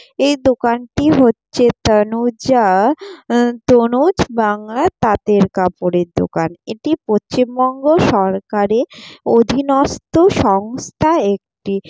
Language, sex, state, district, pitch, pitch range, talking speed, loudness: Bengali, female, West Bengal, Jalpaiguri, 240 Hz, 205-275 Hz, 80 wpm, -15 LUFS